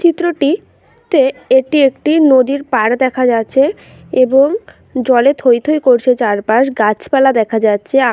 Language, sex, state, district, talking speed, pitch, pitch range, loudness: Bengali, female, West Bengal, North 24 Parganas, 125 wpm, 260 Hz, 245-285 Hz, -12 LUFS